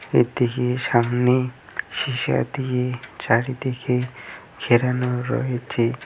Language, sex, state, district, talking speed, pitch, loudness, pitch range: Bengali, male, West Bengal, Cooch Behar, 80 wpm, 125 Hz, -22 LUFS, 120-130 Hz